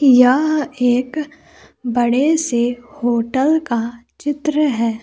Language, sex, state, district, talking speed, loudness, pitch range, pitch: Hindi, female, Jharkhand, Palamu, 95 wpm, -17 LUFS, 240-300 Hz, 255 Hz